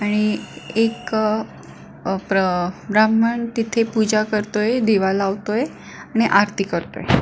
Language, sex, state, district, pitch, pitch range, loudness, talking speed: Marathi, female, Maharashtra, Pune, 215 Hz, 195-225 Hz, -20 LUFS, 110 wpm